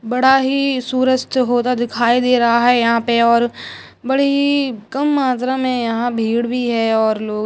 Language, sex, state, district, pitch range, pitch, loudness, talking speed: Hindi, female, West Bengal, Purulia, 235-260 Hz, 245 Hz, -16 LUFS, 175 wpm